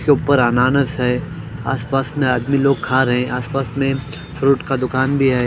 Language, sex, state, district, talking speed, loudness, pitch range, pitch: Hindi, male, Punjab, Pathankot, 210 wpm, -18 LUFS, 125-140 Hz, 135 Hz